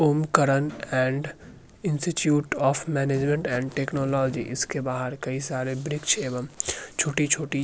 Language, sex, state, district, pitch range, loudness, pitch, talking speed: Hindi, male, Uttarakhand, Tehri Garhwal, 130-150 Hz, -25 LUFS, 140 Hz, 125 wpm